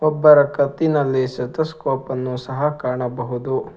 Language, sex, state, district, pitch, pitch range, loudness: Kannada, male, Karnataka, Bangalore, 135 Hz, 125-150 Hz, -19 LUFS